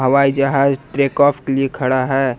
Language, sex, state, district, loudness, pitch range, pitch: Hindi, male, Jharkhand, Ranchi, -16 LUFS, 135-140 Hz, 135 Hz